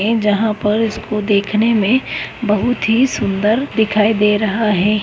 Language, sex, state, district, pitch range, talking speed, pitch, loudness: Hindi, male, West Bengal, Paschim Medinipur, 210-225 Hz, 155 wpm, 215 Hz, -16 LUFS